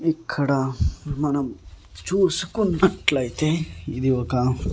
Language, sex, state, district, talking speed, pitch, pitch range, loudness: Telugu, male, Andhra Pradesh, Annamaya, 65 wpm, 140 Hz, 125-165 Hz, -23 LUFS